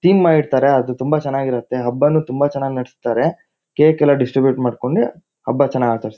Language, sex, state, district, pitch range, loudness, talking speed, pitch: Kannada, male, Karnataka, Shimoga, 125-150 Hz, -17 LUFS, 165 wpm, 135 Hz